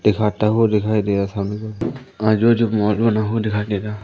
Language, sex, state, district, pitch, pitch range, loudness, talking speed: Hindi, male, Madhya Pradesh, Katni, 105 Hz, 105-110 Hz, -19 LUFS, 220 wpm